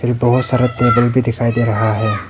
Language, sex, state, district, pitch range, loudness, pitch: Hindi, male, Arunachal Pradesh, Papum Pare, 115-125 Hz, -15 LUFS, 120 Hz